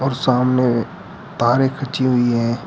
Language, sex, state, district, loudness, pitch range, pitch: Hindi, male, Uttar Pradesh, Shamli, -18 LUFS, 120-130 Hz, 125 Hz